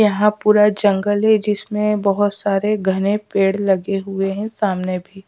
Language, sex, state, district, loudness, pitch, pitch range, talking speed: Hindi, female, Chhattisgarh, Raipur, -17 LUFS, 205 Hz, 195-210 Hz, 160 wpm